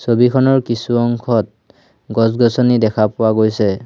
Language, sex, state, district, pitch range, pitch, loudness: Assamese, male, Assam, Hailakandi, 110-120 Hz, 115 Hz, -15 LUFS